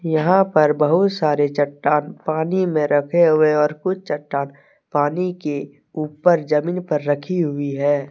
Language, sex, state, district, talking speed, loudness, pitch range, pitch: Hindi, male, Jharkhand, Deoghar, 150 wpm, -19 LUFS, 145-170 Hz, 150 Hz